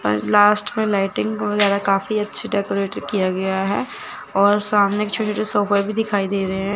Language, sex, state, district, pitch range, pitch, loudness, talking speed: Hindi, female, Chandigarh, Chandigarh, 195-210 Hz, 205 Hz, -19 LUFS, 160 wpm